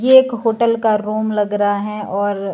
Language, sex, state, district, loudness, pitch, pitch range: Hindi, female, Himachal Pradesh, Shimla, -17 LUFS, 210 Hz, 205-230 Hz